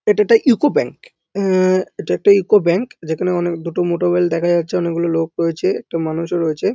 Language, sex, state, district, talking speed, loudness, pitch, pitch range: Bengali, male, West Bengal, North 24 Parganas, 185 wpm, -17 LUFS, 175 Hz, 170-190 Hz